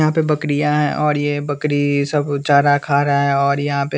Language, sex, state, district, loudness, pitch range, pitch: Hindi, male, Bihar, West Champaran, -17 LUFS, 140-150 Hz, 145 Hz